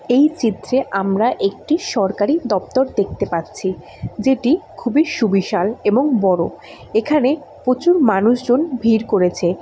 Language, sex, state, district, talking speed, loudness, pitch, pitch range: Bengali, female, West Bengal, Jalpaiguri, 110 wpm, -18 LUFS, 230 Hz, 195-270 Hz